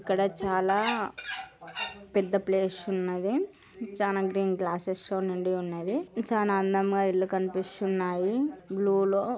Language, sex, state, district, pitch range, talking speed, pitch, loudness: Telugu, female, Andhra Pradesh, Guntur, 185-200 Hz, 110 wpm, 195 Hz, -29 LUFS